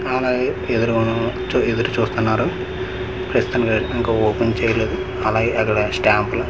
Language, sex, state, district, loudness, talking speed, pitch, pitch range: Telugu, male, Andhra Pradesh, Manyam, -19 LUFS, 130 wpm, 115 Hz, 115-120 Hz